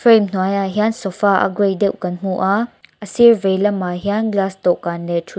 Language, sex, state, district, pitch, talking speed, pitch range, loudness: Mizo, female, Mizoram, Aizawl, 195 Hz, 200 wpm, 185-210 Hz, -17 LUFS